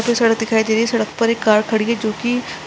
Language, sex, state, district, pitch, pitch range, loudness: Hindi, female, Chhattisgarh, Sarguja, 225 Hz, 220-235 Hz, -17 LUFS